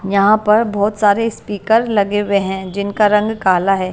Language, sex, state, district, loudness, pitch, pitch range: Hindi, female, Himachal Pradesh, Shimla, -15 LUFS, 205 Hz, 195-215 Hz